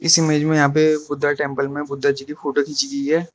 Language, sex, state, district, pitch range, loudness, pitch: Hindi, male, Arunachal Pradesh, Lower Dibang Valley, 140-155 Hz, -19 LUFS, 145 Hz